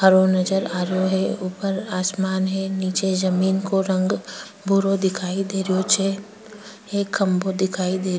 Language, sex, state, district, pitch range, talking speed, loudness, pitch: Rajasthani, female, Rajasthan, Churu, 185-195 Hz, 130 wpm, -22 LUFS, 190 Hz